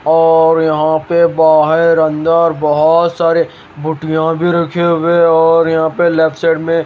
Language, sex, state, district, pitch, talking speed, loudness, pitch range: Hindi, male, Haryana, Rohtak, 165 Hz, 155 wpm, -12 LUFS, 160-170 Hz